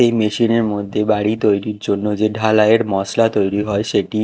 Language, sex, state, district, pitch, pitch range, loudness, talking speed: Bengali, male, Odisha, Khordha, 105 Hz, 105-110 Hz, -17 LUFS, 185 wpm